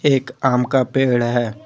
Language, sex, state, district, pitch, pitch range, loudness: Hindi, male, Jharkhand, Deoghar, 125 Hz, 120-135 Hz, -18 LUFS